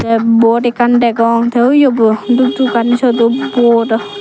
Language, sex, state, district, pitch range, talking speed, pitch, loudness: Chakma, female, Tripura, Dhalai, 230-245 Hz, 185 wpm, 235 Hz, -11 LUFS